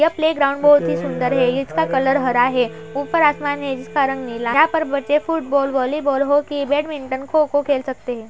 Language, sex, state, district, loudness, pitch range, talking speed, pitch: Hindi, female, Uttar Pradesh, Budaun, -18 LUFS, 260-295 Hz, 210 wpm, 280 Hz